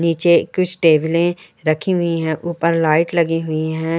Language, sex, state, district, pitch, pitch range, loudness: Hindi, female, Uttarakhand, Uttarkashi, 165 Hz, 160-170 Hz, -17 LUFS